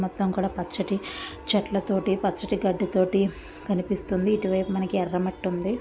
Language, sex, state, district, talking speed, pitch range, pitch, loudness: Telugu, female, Andhra Pradesh, Visakhapatnam, 145 wpm, 185-195 Hz, 195 Hz, -26 LUFS